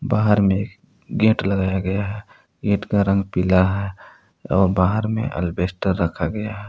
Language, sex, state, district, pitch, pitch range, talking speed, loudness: Hindi, male, Jharkhand, Palamu, 100 Hz, 95-105 Hz, 160 wpm, -21 LUFS